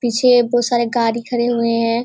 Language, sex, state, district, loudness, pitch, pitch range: Hindi, female, Bihar, Kishanganj, -16 LUFS, 240 Hz, 230-240 Hz